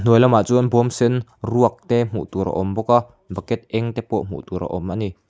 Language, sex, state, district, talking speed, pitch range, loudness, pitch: Mizo, male, Mizoram, Aizawl, 260 wpm, 100-120 Hz, -20 LUFS, 115 Hz